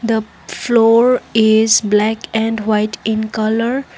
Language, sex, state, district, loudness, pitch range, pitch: English, female, Assam, Kamrup Metropolitan, -15 LUFS, 220-230 Hz, 220 Hz